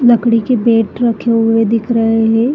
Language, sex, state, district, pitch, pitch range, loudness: Hindi, female, Uttar Pradesh, Jalaun, 230 Hz, 225-240 Hz, -13 LUFS